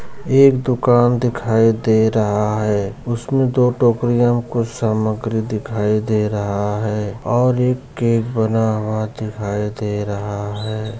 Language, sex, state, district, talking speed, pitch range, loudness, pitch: Hindi, male, Bihar, Muzaffarpur, 130 wpm, 105-120 Hz, -18 LUFS, 110 Hz